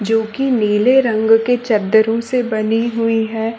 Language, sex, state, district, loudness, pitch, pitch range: Hindi, female, Chhattisgarh, Balrampur, -15 LUFS, 225 Hz, 220-240 Hz